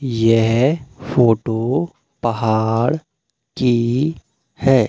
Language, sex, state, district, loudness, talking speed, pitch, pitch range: Hindi, male, Madhya Pradesh, Umaria, -18 LUFS, 60 wpm, 120 Hz, 115-140 Hz